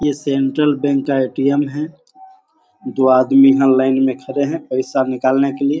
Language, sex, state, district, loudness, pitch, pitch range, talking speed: Hindi, male, Bihar, Begusarai, -16 LUFS, 140 Hz, 130-145 Hz, 185 wpm